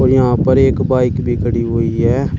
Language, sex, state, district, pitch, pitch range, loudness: Hindi, male, Uttar Pradesh, Shamli, 125 Hz, 115-130 Hz, -14 LUFS